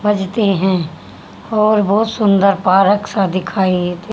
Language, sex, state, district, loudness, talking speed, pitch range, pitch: Hindi, female, Haryana, Charkhi Dadri, -15 LUFS, 160 wpm, 185-210 Hz, 195 Hz